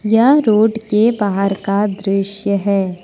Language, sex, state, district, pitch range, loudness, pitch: Hindi, female, Jharkhand, Deoghar, 195-220 Hz, -15 LUFS, 205 Hz